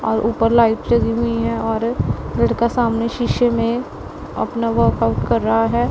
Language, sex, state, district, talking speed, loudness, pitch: Hindi, female, Punjab, Pathankot, 170 wpm, -18 LUFS, 220 Hz